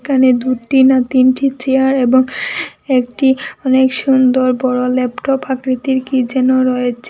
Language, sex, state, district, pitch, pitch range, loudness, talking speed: Bengali, female, Assam, Hailakandi, 260 Hz, 255-265 Hz, -14 LUFS, 125 wpm